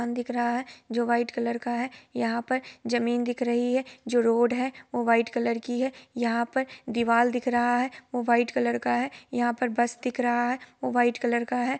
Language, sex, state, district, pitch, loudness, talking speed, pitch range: Hindi, female, Bihar, Sitamarhi, 240 Hz, -27 LUFS, 230 wpm, 235-250 Hz